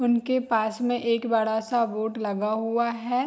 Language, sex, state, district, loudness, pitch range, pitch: Hindi, female, Bihar, Saharsa, -25 LUFS, 220-240 Hz, 230 Hz